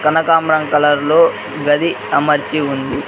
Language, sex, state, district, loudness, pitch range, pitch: Telugu, male, Telangana, Mahabubabad, -14 LUFS, 145-155 Hz, 150 Hz